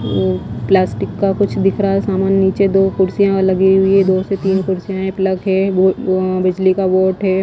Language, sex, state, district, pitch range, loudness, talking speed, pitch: Hindi, female, Himachal Pradesh, Shimla, 185-195 Hz, -15 LUFS, 195 wpm, 190 Hz